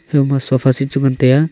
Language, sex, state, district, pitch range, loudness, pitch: Wancho, male, Arunachal Pradesh, Longding, 130-140 Hz, -15 LUFS, 135 Hz